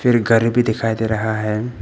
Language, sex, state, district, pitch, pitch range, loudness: Hindi, male, Arunachal Pradesh, Papum Pare, 115 Hz, 110-120 Hz, -18 LUFS